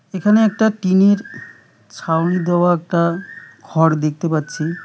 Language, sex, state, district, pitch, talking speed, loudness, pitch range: Bengali, male, West Bengal, Cooch Behar, 175 Hz, 110 wpm, -17 LUFS, 160-195 Hz